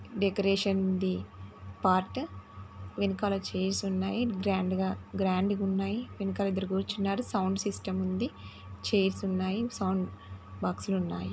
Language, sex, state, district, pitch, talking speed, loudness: Telugu, female, Telangana, Nalgonda, 190 Hz, 105 wpm, -31 LUFS